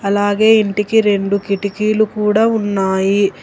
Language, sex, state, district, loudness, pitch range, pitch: Telugu, female, Telangana, Hyderabad, -15 LUFS, 200-215 Hz, 205 Hz